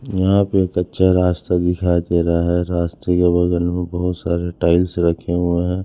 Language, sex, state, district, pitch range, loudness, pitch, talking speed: Hindi, male, Punjab, Kapurthala, 85-90 Hz, -18 LUFS, 90 Hz, 185 wpm